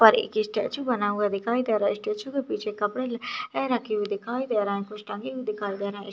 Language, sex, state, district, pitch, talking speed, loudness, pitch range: Hindi, female, Chhattisgarh, Balrampur, 215 Hz, 255 wpm, -27 LUFS, 205-255 Hz